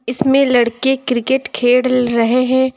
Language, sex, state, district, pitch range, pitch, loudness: Hindi, female, Uttar Pradesh, Lucknow, 245-265 Hz, 255 Hz, -14 LUFS